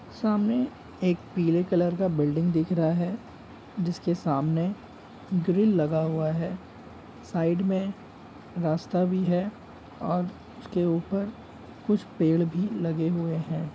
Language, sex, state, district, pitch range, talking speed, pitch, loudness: Hindi, male, Bihar, Darbhanga, 165-190 Hz, 125 wpm, 175 Hz, -27 LUFS